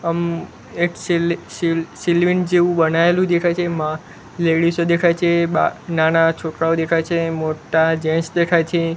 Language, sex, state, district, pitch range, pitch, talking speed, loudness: Gujarati, male, Gujarat, Gandhinagar, 165-170 Hz, 170 Hz, 145 wpm, -18 LUFS